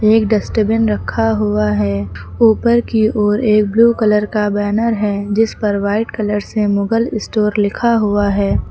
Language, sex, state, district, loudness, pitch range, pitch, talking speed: Hindi, female, Uttar Pradesh, Lucknow, -15 LUFS, 200-220 Hz, 210 Hz, 165 wpm